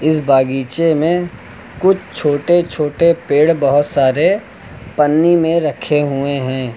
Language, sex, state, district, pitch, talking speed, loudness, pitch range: Hindi, male, Uttar Pradesh, Lucknow, 150 Hz, 125 wpm, -14 LUFS, 135-165 Hz